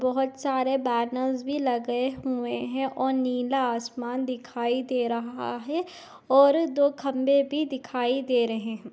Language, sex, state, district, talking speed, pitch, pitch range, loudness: Hindi, female, Uttar Pradesh, Deoria, 150 wpm, 255 Hz, 245-270 Hz, -26 LUFS